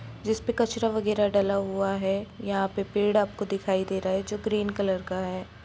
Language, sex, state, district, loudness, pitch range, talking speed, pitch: Hindi, female, Jharkhand, Jamtara, -27 LUFS, 195-210 Hz, 210 wpm, 200 Hz